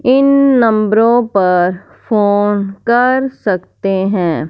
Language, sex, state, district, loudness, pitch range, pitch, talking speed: Hindi, female, Punjab, Fazilka, -13 LUFS, 195-245 Hz, 210 Hz, 95 wpm